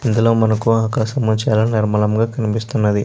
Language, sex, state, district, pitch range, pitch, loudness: Telugu, male, Andhra Pradesh, Chittoor, 110-115 Hz, 110 Hz, -17 LUFS